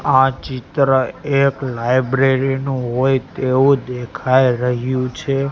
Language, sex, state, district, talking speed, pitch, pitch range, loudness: Gujarati, male, Gujarat, Gandhinagar, 110 wpm, 130 Hz, 125-135 Hz, -17 LUFS